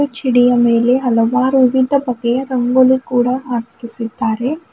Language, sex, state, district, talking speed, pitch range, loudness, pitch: Kannada, female, Karnataka, Bidar, 100 wpm, 235-260 Hz, -15 LUFS, 250 Hz